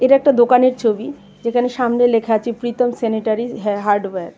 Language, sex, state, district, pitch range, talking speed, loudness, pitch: Bengali, female, Tripura, West Tripura, 220-250 Hz, 165 wpm, -17 LUFS, 235 Hz